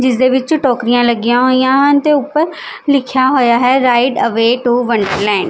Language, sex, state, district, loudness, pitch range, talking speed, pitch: Punjabi, female, Chandigarh, Chandigarh, -12 LUFS, 240-270 Hz, 185 wpm, 255 Hz